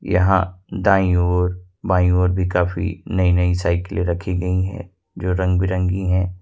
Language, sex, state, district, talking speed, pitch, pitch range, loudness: Hindi, male, Jharkhand, Ranchi, 140 wpm, 90 Hz, 90-95 Hz, -19 LUFS